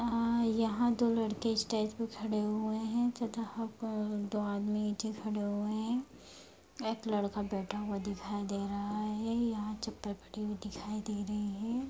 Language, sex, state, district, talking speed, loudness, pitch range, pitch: Hindi, female, Bihar, Bhagalpur, 170 wpm, -35 LUFS, 205-225 Hz, 215 Hz